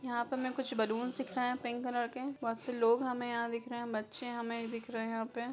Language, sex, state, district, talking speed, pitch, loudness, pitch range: Hindi, female, Bihar, Begusarai, 295 wpm, 240 Hz, -36 LUFS, 230-250 Hz